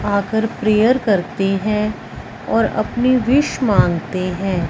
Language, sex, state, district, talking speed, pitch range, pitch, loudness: Hindi, female, Punjab, Fazilka, 115 wpm, 195-230 Hz, 210 Hz, -17 LUFS